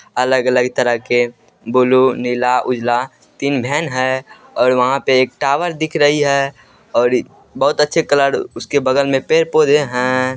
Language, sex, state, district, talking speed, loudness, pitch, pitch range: Hindi, male, Bihar, Purnia, 155 wpm, -16 LUFS, 130 Hz, 125-145 Hz